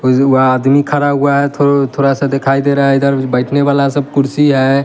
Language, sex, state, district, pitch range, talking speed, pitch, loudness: Hindi, male, Bihar, West Champaran, 135-140 Hz, 235 wpm, 140 Hz, -12 LUFS